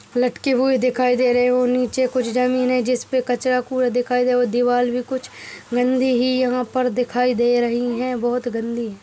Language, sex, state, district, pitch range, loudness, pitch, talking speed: Hindi, male, Bihar, Darbhanga, 245-255 Hz, -20 LUFS, 250 Hz, 185 wpm